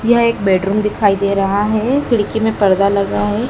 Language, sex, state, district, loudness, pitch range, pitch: Hindi, male, Madhya Pradesh, Dhar, -15 LUFS, 200-220 Hz, 205 Hz